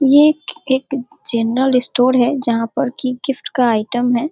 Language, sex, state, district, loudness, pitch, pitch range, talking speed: Hindi, female, Bihar, Darbhanga, -17 LUFS, 255 Hz, 245-280 Hz, 180 wpm